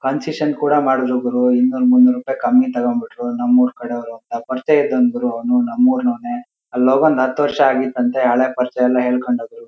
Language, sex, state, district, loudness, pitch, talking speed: Kannada, male, Karnataka, Shimoga, -16 LUFS, 150 Hz, 180 wpm